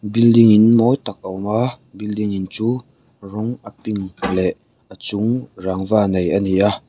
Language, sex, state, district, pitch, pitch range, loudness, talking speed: Mizo, male, Mizoram, Aizawl, 105 Hz, 95-115 Hz, -18 LUFS, 175 wpm